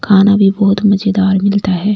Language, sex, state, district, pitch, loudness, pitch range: Hindi, female, Delhi, New Delhi, 200 Hz, -11 LUFS, 195-205 Hz